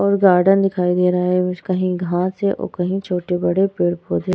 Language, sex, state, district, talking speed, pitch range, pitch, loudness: Hindi, female, Uttar Pradesh, Etah, 220 wpm, 180-190 Hz, 180 Hz, -18 LUFS